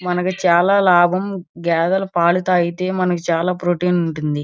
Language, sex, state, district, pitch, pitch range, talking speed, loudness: Telugu, female, Andhra Pradesh, Krishna, 175 Hz, 170-185 Hz, 135 wpm, -17 LUFS